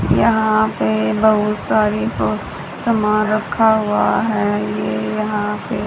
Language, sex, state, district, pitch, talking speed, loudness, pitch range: Hindi, female, Haryana, Charkhi Dadri, 215 Hz, 115 wpm, -17 LUFS, 205-220 Hz